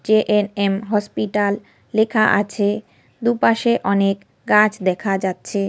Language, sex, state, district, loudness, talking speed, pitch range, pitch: Bengali, female, West Bengal, North 24 Parganas, -19 LUFS, 105 wpm, 200-215 Hz, 210 Hz